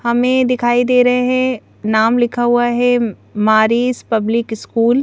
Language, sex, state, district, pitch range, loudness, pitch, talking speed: Hindi, female, Madhya Pradesh, Bhopal, 225-250 Hz, -15 LUFS, 240 Hz, 155 wpm